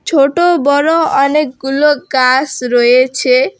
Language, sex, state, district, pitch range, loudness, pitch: Bengali, female, West Bengal, Alipurduar, 255-300 Hz, -11 LUFS, 275 Hz